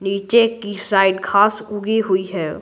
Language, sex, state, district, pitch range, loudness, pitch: Hindi, female, Bihar, Patna, 195-215 Hz, -17 LUFS, 205 Hz